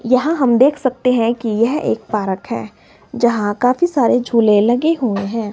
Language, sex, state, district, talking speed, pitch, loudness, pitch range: Hindi, male, Himachal Pradesh, Shimla, 185 wpm, 240 Hz, -16 LUFS, 220-255 Hz